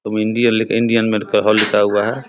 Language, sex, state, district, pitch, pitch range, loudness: Hindi, male, Bihar, Samastipur, 110 Hz, 105-115 Hz, -15 LUFS